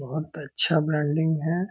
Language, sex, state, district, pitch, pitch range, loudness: Hindi, male, Bihar, Purnia, 155 Hz, 155-165 Hz, -25 LUFS